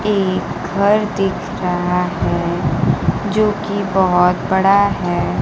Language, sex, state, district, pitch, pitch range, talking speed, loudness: Hindi, female, Bihar, Kaimur, 190 Hz, 180-200 Hz, 110 wpm, -17 LUFS